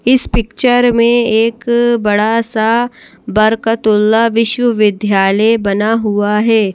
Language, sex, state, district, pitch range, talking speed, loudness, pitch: Hindi, female, Madhya Pradesh, Bhopal, 210-235 Hz, 100 wpm, -12 LUFS, 225 Hz